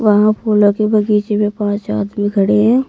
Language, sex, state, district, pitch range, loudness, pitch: Hindi, female, Uttar Pradesh, Saharanpur, 205-215 Hz, -14 LUFS, 210 Hz